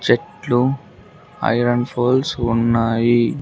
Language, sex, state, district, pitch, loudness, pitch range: Telugu, male, Andhra Pradesh, Sri Satya Sai, 120 Hz, -18 LUFS, 115-125 Hz